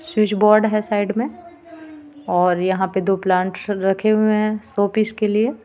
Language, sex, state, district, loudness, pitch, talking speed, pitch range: Hindi, female, Jharkhand, Ranchi, -19 LUFS, 215 Hz, 180 wpm, 195-225 Hz